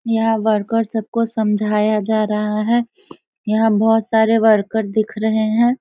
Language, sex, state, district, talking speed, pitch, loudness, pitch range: Hindi, female, Bihar, Sitamarhi, 155 wpm, 220 Hz, -17 LUFS, 215-225 Hz